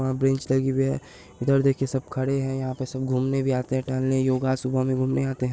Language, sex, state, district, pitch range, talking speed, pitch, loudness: Hindi, male, Bihar, Saharsa, 130-135 Hz, 260 wpm, 130 Hz, -25 LUFS